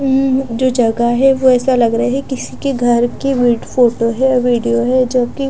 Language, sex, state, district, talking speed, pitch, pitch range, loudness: Hindi, female, Punjab, Fazilka, 240 wpm, 250 Hz, 240-265 Hz, -14 LUFS